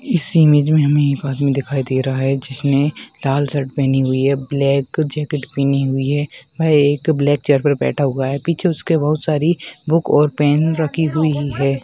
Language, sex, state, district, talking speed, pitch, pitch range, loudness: Hindi, female, West Bengal, Dakshin Dinajpur, 200 wpm, 145 Hz, 135-155 Hz, -17 LUFS